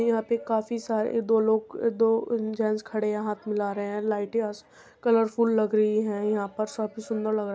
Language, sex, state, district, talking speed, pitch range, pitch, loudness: Hindi, female, Uttar Pradesh, Muzaffarnagar, 205 wpm, 215-225 Hz, 220 Hz, -26 LUFS